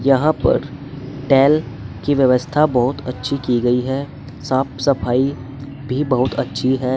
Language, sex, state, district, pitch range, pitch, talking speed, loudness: Hindi, male, Uttar Pradesh, Saharanpur, 125-140 Hz, 135 Hz, 140 wpm, -18 LUFS